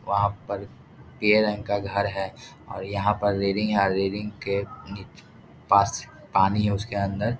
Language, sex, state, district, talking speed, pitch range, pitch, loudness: Hindi, male, Bihar, Jahanabad, 160 wpm, 100-105 Hz, 100 Hz, -25 LUFS